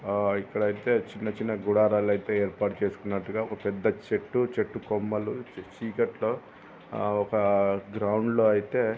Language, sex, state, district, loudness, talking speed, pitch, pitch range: Telugu, male, Andhra Pradesh, Srikakulam, -28 LUFS, 120 wpm, 105 Hz, 100-110 Hz